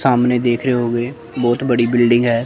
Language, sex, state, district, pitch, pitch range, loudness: Hindi, male, Chandigarh, Chandigarh, 120 Hz, 120-125 Hz, -16 LUFS